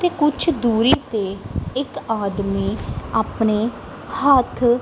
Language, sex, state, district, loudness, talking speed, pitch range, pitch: Punjabi, female, Punjab, Kapurthala, -20 LUFS, 100 wpm, 210-275 Hz, 240 Hz